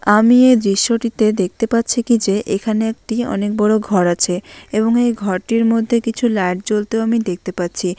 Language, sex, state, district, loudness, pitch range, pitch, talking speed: Bengali, female, West Bengal, Malda, -16 LUFS, 195-230 Hz, 215 Hz, 170 wpm